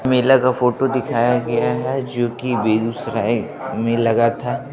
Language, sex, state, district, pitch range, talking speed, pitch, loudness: Hindi, male, Bihar, Begusarai, 115-130 Hz, 150 wpm, 120 Hz, -19 LUFS